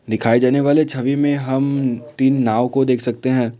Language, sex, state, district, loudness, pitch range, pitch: Hindi, male, Assam, Kamrup Metropolitan, -17 LUFS, 120-140 Hz, 130 Hz